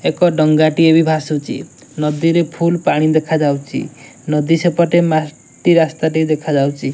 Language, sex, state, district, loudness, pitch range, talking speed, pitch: Odia, male, Odisha, Nuapada, -15 LUFS, 150-165 Hz, 120 wpm, 155 Hz